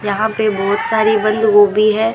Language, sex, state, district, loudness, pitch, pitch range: Hindi, female, Rajasthan, Bikaner, -14 LUFS, 215 Hz, 210-220 Hz